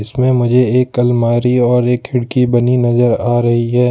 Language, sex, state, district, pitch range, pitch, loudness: Hindi, male, Jharkhand, Ranchi, 120-125 Hz, 125 Hz, -13 LUFS